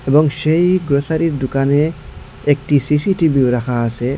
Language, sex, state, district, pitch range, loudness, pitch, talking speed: Bengali, male, Assam, Hailakandi, 135-160 Hz, -15 LUFS, 145 Hz, 115 wpm